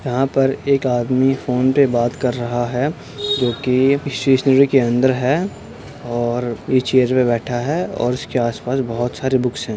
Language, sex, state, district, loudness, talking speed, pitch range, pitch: Hindi, male, Uttar Pradesh, Budaun, -18 LUFS, 190 wpm, 120-135 Hz, 130 Hz